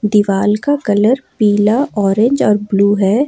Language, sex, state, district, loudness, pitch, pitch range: Hindi, female, Jharkhand, Ranchi, -13 LUFS, 210 Hz, 205-240 Hz